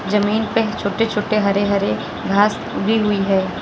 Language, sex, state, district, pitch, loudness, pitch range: Hindi, female, Uttar Pradesh, Lalitpur, 210 Hz, -18 LUFS, 200-220 Hz